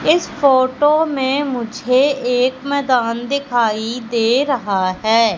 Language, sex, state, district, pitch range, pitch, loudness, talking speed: Hindi, female, Madhya Pradesh, Katni, 230-280 Hz, 255 Hz, -17 LUFS, 110 wpm